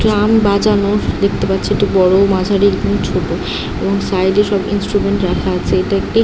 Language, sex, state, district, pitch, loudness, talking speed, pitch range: Bengali, female, West Bengal, Jhargram, 200 Hz, -14 LUFS, 180 wpm, 195-205 Hz